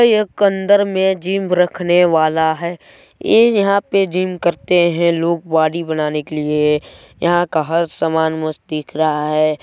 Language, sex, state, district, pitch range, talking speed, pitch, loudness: Hindi, male, Chhattisgarh, Balrampur, 155-185 Hz, 160 wpm, 170 Hz, -16 LUFS